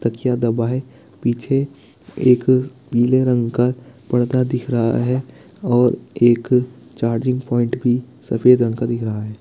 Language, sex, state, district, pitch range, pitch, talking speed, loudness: Hindi, male, Bihar, Kishanganj, 120-130 Hz, 125 Hz, 140 wpm, -18 LUFS